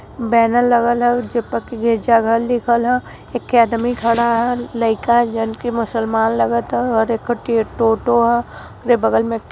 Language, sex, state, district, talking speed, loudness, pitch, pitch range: Hindi, female, Uttar Pradesh, Varanasi, 185 wpm, -17 LUFS, 235 Hz, 225-240 Hz